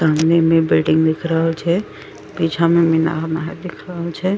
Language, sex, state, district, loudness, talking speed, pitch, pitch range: Maithili, female, Bihar, Madhepura, -17 LUFS, 190 wpm, 165 Hz, 160-170 Hz